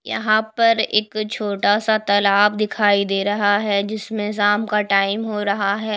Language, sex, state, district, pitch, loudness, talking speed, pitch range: Hindi, female, Chhattisgarh, Raipur, 210 Hz, -19 LUFS, 170 wpm, 205-215 Hz